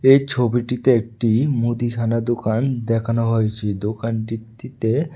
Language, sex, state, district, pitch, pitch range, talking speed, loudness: Bengali, male, Tripura, West Tripura, 115 Hz, 115-125 Hz, 95 wpm, -20 LUFS